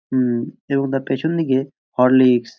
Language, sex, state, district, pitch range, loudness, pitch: Bengali, male, West Bengal, Purulia, 125-135 Hz, -19 LUFS, 130 Hz